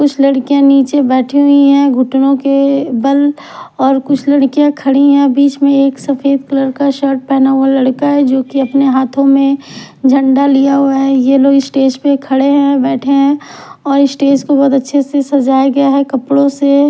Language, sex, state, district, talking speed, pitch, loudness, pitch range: Hindi, female, Haryana, Charkhi Dadri, 195 wpm, 275 Hz, -10 LUFS, 270-280 Hz